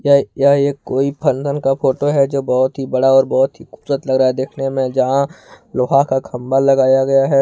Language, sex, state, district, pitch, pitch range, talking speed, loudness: Hindi, male, Jharkhand, Ranchi, 135 Hz, 130-140 Hz, 220 wpm, -16 LUFS